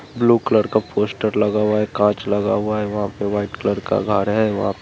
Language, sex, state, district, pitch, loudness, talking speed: Hindi, male, Bihar, Vaishali, 105 Hz, -19 LUFS, 250 wpm